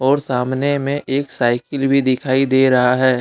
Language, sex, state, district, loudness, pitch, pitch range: Hindi, male, Jharkhand, Deoghar, -17 LUFS, 130 Hz, 130-140 Hz